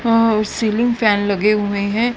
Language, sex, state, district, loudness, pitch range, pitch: Hindi, female, Haryana, Rohtak, -17 LUFS, 205-230 Hz, 215 Hz